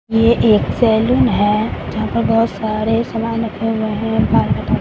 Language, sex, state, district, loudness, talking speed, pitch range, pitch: Hindi, female, Bihar, Katihar, -16 LUFS, 185 wpm, 210-225 Hz, 220 Hz